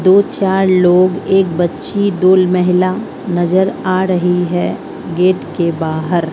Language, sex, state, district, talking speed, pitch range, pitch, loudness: Hindi, female, Bihar, Katihar, 135 wpm, 175-190 Hz, 185 Hz, -14 LUFS